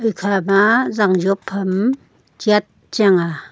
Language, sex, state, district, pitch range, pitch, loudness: Wancho, female, Arunachal Pradesh, Longding, 195-215 Hz, 195 Hz, -17 LUFS